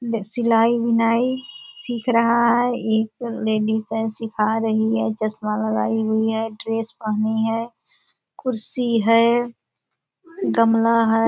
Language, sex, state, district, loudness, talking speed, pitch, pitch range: Hindi, female, Bihar, Purnia, -20 LUFS, 115 wpm, 225 Hz, 220-235 Hz